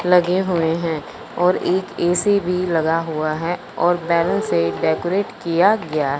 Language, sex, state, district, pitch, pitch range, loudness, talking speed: Hindi, male, Punjab, Fazilka, 175 Hz, 160-185 Hz, -19 LUFS, 155 wpm